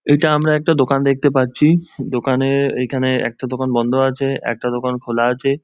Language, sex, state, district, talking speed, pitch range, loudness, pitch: Bengali, male, West Bengal, Jhargram, 170 wpm, 125-140 Hz, -17 LUFS, 135 Hz